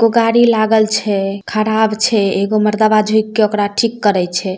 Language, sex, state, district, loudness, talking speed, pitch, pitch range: Maithili, female, Bihar, Samastipur, -14 LUFS, 185 wpm, 215 Hz, 205-220 Hz